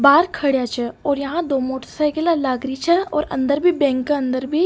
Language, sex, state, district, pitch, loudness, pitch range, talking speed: Rajasthani, female, Rajasthan, Nagaur, 285 Hz, -20 LUFS, 260-315 Hz, 245 wpm